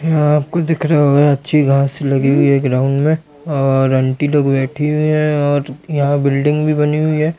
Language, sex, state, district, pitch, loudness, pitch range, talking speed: Hindi, male, Uttar Pradesh, Deoria, 145 Hz, -15 LUFS, 140-150 Hz, 205 wpm